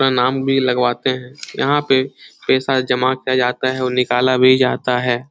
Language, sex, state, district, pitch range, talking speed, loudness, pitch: Hindi, male, Bihar, Jahanabad, 125-130 Hz, 190 wpm, -17 LUFS, 130 Hz